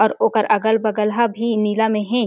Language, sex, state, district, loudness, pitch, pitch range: Chhattisgarhi, female, Chhattisgarh, Jashpur, -18 LUFS, 220 Hz, 215-230 Hz